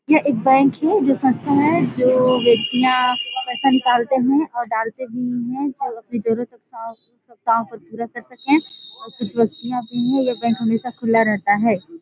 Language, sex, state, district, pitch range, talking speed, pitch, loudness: Hindi, female, Chhattisgarh, Sarguja, 230-265 Hz, 135 wpm, 245 Hz, -19 LUFS